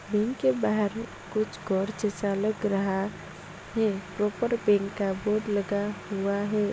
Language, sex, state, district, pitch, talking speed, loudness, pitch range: Hindi, male, Bihar, Jahanabad, 205 Hz, 115 wpm, -28 LUFS, 200-215 Hz